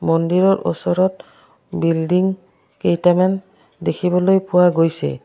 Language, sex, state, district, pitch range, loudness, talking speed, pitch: Assamese, female, Assam, Kamrup Metropolitan, 170-190 Hz, -17 LUFS, 80 wpm, 180 Hz